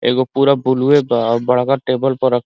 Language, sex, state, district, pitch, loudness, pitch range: Bhojpuri, male, Uttar Pradesh, Ghazipur, 130 Hz, -15 LUFS, 125-135 Hz